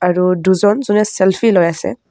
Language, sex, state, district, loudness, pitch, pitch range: Assamese, female, Assam, Kamrup Metropolitan, -14 LUFS, 190 Hz, 180-210 Hz